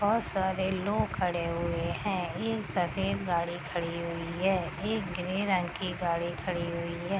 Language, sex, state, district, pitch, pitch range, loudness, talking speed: Hindi, female, Bihar, East Champaran, 180 Hz, 170-190 Hz, -31 LUFS, 165 wpm